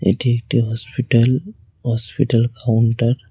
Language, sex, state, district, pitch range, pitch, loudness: Bengali, male, West Bengal, Cooch Behar, 115-125 Hz, 120 Hz, -18 LUFS